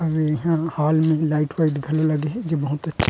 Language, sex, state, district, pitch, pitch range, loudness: Chhattisgarhi, male, Chhattisgarh, Rajnandgaon, 155 Hz, 150-160 Hz, -21 LUFS